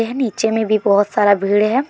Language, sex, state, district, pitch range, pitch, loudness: Hindi, female, Jharkhand, Deoghar, 205-225 Hz, 215 Hz, -16 LUFS